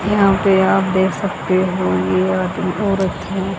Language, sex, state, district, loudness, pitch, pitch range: Hindi, female, Haryana, Jhajjar, -17 LUFS, 190 Hz, 180-195 Hz